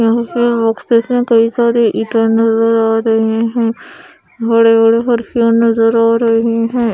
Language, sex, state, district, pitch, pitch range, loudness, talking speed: Hindi, female, Odisha, Khordha, 230 Hz, 225-235 Hz, -12 LUFS, 130 wpm